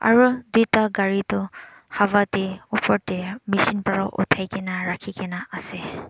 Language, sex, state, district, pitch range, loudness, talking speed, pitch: Nagamese, male, Nagaland, Dimapur, 190-215 Hz, -22 LUFS, 145 wpm, 195 Hz